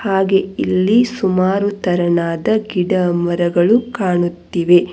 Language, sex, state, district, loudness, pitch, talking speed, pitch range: Kannada, female, Karnataka, Bangalore, -16 LUFS, 185 Hz, 75 wpm, 175-200 Hz